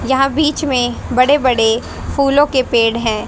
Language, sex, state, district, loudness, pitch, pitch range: Hindi, female, Haryana, Jhajjar, -14 LUFS, 260 Hz, 235-280 Hz